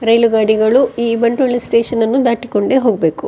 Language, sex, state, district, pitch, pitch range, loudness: Kannada, female, Karnataka, Dakshina Kannada, 235 Hz, 225-245 Hz, -14 LUFS